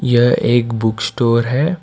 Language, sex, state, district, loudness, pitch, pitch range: Hindi, male, Karnataka, Bangalore, -15 LUFS, 120 Hz, 115-125 Hz